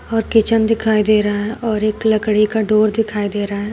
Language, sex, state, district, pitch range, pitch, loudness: Hindi, female, Uttar Pradesh, Shamli, 210-220 Hz, 215 Hz, -16 LUFS